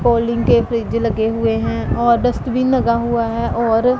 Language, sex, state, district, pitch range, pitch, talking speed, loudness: Hindi, female, Punjab, Pathankot, 230-240 Hz, 235 Hz, 180 wpm, -17 LUFS